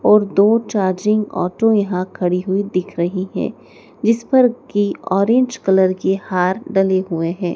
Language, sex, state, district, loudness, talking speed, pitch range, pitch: Hindi, female, Madhya Pradesh, Dhar, -17 LUFS, 160 wpm, 185-215 Hz, 195 Hz